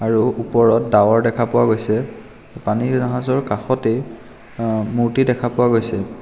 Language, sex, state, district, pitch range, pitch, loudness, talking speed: Assamese, male, Assam, Kamrup Metropolitan, 115-120 Hz, 115 Hz, -18 LUFS, 125 wpm